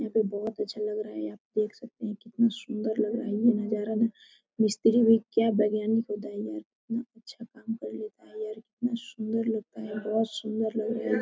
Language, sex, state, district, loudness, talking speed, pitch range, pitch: Hindi, female, Jharkhand, Sahebganj, -29 LUFS, 200 wpm, 215-230 Hz, 220 Hz